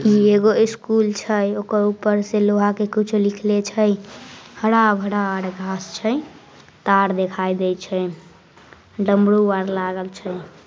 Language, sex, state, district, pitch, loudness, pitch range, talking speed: Magahi, female, Bihar, Samastipur, 205 Hz, -19 LUFS, 190-210 Hz, 140 wpm